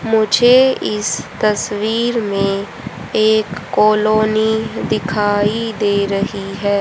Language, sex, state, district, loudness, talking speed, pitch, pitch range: Hindi, female, Haryana, Jhajjar, -16 LUFS, 90 wpm, 215 Hz, 200-220 Hz